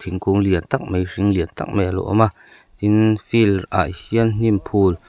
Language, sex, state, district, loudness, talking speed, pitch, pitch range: Mizo, male, Mizoram, Aizawl, -19 LUFS, 210 wpm, 100 Hz, 95-110 Hz